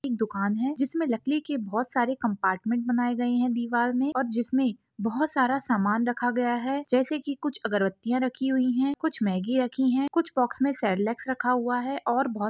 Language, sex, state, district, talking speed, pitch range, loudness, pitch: Hindi, female, Jharkhand, Sahebganj, 200 wpm, 235-265 Hz, -27 LUFS, 250 Hz